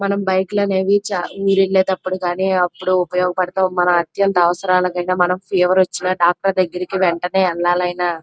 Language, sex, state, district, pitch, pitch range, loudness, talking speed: Telugu, female, Andhra Pradesh, Krishna, 185 Hz, 180-190 Hz, -17 LUFS, 95 wpm